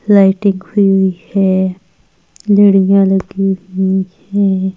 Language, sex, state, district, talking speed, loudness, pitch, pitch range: Hindi, female, Delhi, New Delhi, 100 wpm, -13 LUFS, 195 Hz, 190-200 Hz